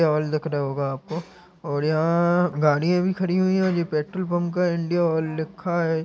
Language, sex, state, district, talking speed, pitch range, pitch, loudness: Hindi, male, Chhattisgarh, Raigarh, 210 wpm, 155-180 Hz, 170 Hz, -23 LUFS